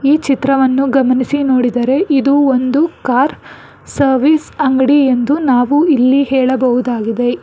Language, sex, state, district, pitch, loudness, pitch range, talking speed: Kannada, female, Karnataka, Bangalore, 270 Hz, -13 LUFS, 255-285 Hz, 105 wpm